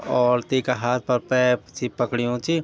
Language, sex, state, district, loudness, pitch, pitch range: Garhwali, male, Uttarakhand, Tehri Garhwal, -22 LUFS, 125 Hz, 120-125 Hz